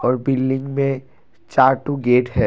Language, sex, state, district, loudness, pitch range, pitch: Hindi, male, Assam, Kamrup Metropolitan, -19 LUFS, 125-135 Hz, 130 Hz